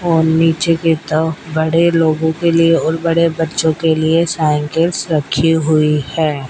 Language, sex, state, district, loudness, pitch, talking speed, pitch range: Hindi, female, Rajasthan, Bikaner, -14 LUFS, 160 Hz, 150 wpm, 155-165 Hz